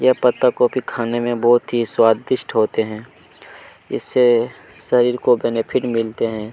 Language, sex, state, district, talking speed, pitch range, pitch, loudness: Hindi, male, Chhattisgarh, Kabirdham, 145 wpm, 115-125 Hz, 120 Hz, -18 LUFS